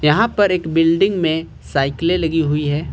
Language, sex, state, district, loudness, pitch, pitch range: Hindi, male, Jharkhand, Ranchi, -17 LUFS, 165 Hz, 150-180 Hz